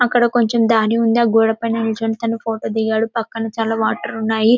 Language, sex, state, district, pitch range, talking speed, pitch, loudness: Telugu, female, Telangana, Karimnagar, 225-230 Hz, 185 wpm, 225 Hz, -18 LUFS